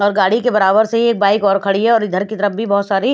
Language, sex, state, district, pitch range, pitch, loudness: Hindi, female, Haryana, Rohtak, 200-225 Hz, 205 Hz, -15 LUFS